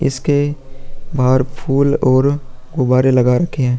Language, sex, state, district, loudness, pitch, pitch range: Hindi, male, Bihar, Vaishali, -15 LUFS, 135 Hz, 130-140 Hz